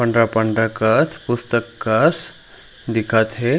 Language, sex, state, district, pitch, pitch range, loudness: Chhattisgarhi, male, Chhattisgarh, Raigarh, 115 Hz, 110-120 Hz, -18 LUFS